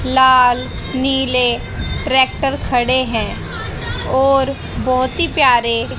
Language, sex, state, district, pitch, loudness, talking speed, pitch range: Hindi, female, Haryana, Jhajjar, 260 Hz, -15 LUFS, 90 wpm, 245-270 Hz